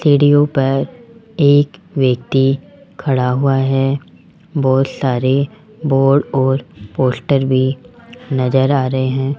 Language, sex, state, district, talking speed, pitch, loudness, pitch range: Hindi, male, Rajasthan, Jaipur, 110 wpm, 135 Hz, -16 LUFS, 130-145 Hz